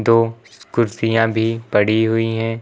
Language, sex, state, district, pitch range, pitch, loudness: Hindi, male, Uttar Pradesh, Lucknow, 110-115 Hz, 115 Hz, -18 LUFS